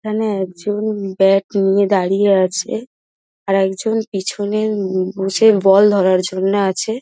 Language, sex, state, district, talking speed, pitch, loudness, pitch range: Bengali, female, West Bengal, Dakshin Dinajpur, 130 wpm, 195 Hz, -16 LUFS, 190-210 Hz